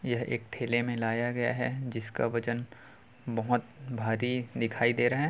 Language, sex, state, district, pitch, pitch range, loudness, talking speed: Hindi, male, Chhattisgarh, Kabirdham, 120 Hz, 115-125 Hz, -31 LUFS, 170 wpm